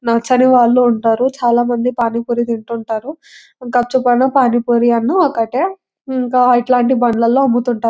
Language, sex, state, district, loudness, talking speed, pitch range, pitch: Telugu, female, Telangana, Nalgonda, -14 LUFS, 130 wpm, 235-260 Hz, 245 Hz